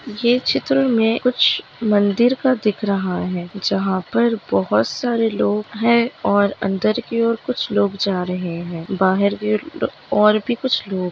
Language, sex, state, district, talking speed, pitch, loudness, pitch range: Hindi, female, Maharashtra, Dhule, 180 wpm, 210 Hz, -19 LUFS, 195-235 Hz